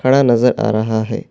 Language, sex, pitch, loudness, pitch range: Urdu, male, 120 Hz, -15 LUFS, 110-125 Hz